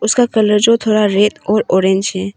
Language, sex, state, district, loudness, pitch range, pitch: Hindi, female, Arunachal Pradesh, Papum Pare, -13 LUFS, 195-220 Hz, 210 Hz